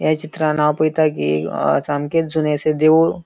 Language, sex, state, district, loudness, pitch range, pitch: Konkani, male, Goa, North and South Goa, -18 LUFS, 150-160 Hz, 155 Hz